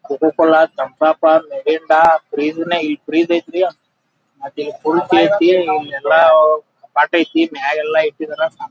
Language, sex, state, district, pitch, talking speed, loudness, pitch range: Kannada, male, Karnataka, Belgaum, 160 Hz, 105 wpm, -15 LUFS, 155-175 Hz